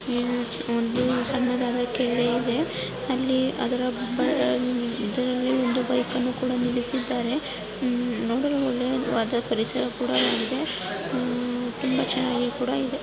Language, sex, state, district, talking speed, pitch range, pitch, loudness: Kannada, female, Karnataka, Shimoga, 125 wpm, 240-255 Hz, 250 Hz, -25 LUFS